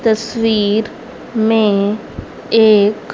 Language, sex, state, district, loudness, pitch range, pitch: Hindi, female, Haryana, Rohtak, -14 LUFS, 210-225 Hz, 220 Hz